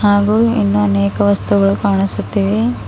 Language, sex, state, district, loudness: Kannada, female, Karnataka, Bidar, -14 LUFS